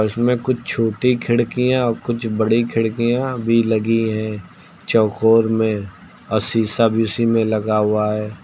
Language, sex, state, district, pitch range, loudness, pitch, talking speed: Hindi, male, Uttar Pradesh, Lucknow, 110-120 Hz, -18 LUFS, 115 Hz, 140 wpm